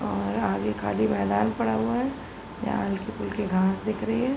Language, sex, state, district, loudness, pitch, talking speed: Hindi, female, Uttar Pradesh, Jalaun, -27 LUFS, 115 Hz, 180 wpm